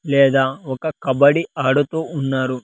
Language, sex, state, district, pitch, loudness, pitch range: Telugu, male, Andhra Pradesh, Sri Satya Sai, 140 Hz, -18 LUFS, 130-150 Hz